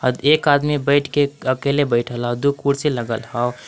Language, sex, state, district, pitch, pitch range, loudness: Magahi, male, Jharkhand, Palamu, 140 Hz, 120-145 Hz, -19 LUFS